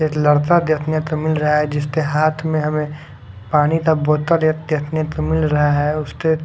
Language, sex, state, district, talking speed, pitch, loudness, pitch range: Hindi, male, Odisha, Khordha, 195 wpm, 155 Hz, -18 LUFS, 150-155 Hz